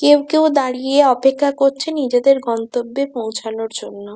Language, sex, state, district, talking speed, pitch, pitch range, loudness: Bengali, female, West Bengal, Kolkata, 130 wpm, 270 Hz, 235-285 Hz, -17 LUFS